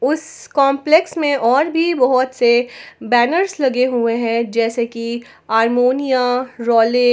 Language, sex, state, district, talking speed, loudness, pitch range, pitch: Hindi, female, Jharkhand, Ranchi, 135 wpm, -16 LUFS, 235-280 Hz, 250 Hz